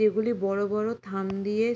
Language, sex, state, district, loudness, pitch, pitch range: Bengali, female, West Bengal, Jalpaiguri, -28 LUFS, 210 Hz, 195-225 Hz